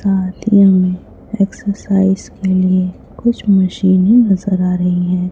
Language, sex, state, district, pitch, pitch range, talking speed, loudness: Hindi, female, Chhattisgarh, Raipur, 190 Hz, 185-200 Hz, 135 wpm, -14 LUFS